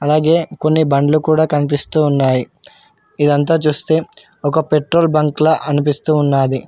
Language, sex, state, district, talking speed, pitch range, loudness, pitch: Telugu, male, Telangana, Hyderabad, 115 wpm, 145-160 Hz, -15 LUFS, 150 Hz